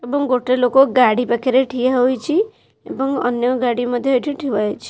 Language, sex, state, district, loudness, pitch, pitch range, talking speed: Odia, female, Odisha, Khordha, -17 LUFS, 255 Hz, 245-270 Hz, 170 wpm